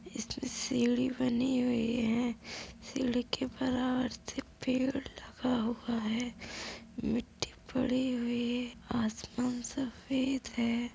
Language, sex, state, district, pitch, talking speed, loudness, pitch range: Hindi, female, Uttar Pradesh, Budaun, 245 Hz, 105 wpm, -34 LUFS, 235-260 Hz